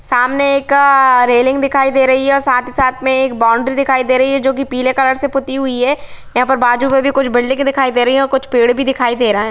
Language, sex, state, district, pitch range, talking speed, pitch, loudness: Hindi, female, Jharkhand, Sahebganj, 250-270 Hz, 270 wpm, 265 Hz, -13 LUFS